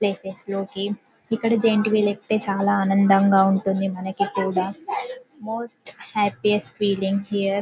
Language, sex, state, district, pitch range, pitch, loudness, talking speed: Telugu, female, Telangana, Karimnagar, 195-215 Hz, 200 Hz, -22 LUFS, 125 wpm